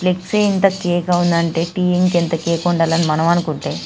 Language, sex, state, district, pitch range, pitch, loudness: Telugu, female, Andhra Pradesh, Anantapur, 165-180 Hz, 175 Hz, -17 LUFS